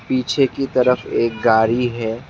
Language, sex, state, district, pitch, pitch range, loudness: Hindi, male, Assam, Kamrup Metropolitan, 125 Hz, 115-130 Hz, -18 LUFS